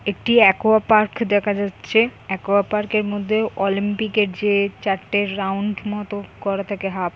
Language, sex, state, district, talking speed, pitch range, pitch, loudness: Bengali, female, West Bengal, Jhargram, 135 wpm, 195-215 Hz, 205 Hz, -20 LUFS